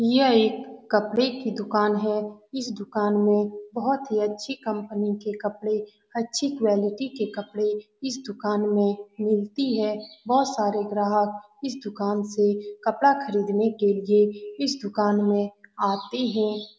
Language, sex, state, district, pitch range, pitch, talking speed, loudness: Hindi, female, Bihar, Saran, 205-230 Hz, 210 Hz, 140 wpm, -25 LUFS